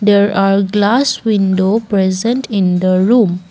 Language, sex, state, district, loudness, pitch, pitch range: English, female, Assam, Kamrup Metropolitan, -13 LUFS, 200 Hz, 190-220 Hz